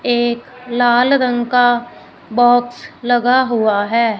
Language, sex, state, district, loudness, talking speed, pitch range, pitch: Hindi, female, Punjab, Fazilka, -15 LUFS, 115 wpm, 240-245 Hz, 245 Hz